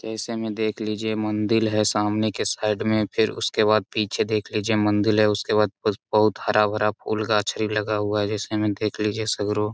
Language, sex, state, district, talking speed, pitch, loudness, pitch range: Hindi, male, Bihar, Jamui, 195 wpm, 105 Hz, -23 LUFS, 105-110 Hz